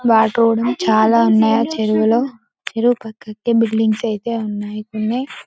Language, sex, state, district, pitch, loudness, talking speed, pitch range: Telugu, female, Telangana, Karimnagar, 225 Hz, -17 LUFS, 110 wpm, 220-235 Hz